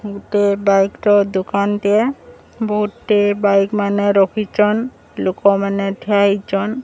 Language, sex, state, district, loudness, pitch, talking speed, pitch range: Odia, male, Odisha, Sambalpur, -16 LUFS, 205 Hz, 115 wpm, 200-210 Hz